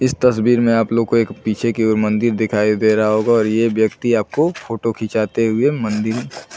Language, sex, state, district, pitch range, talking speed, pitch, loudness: Hindi, male, Chhattisgarh, Bilaspur, 110-115 Hz, 220 wpm, 115 Hz, -17 LUFS